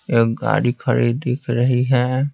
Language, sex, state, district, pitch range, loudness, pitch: Hindi, male, Bihar, Patna, 120-135 Hz, -19 LUFS, 125 Hz